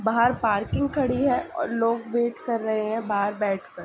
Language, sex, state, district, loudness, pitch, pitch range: Hindi, female, Uttar Pradesh, Ghazipur, -25 LUFS, 230 Hz, 210-250 Hz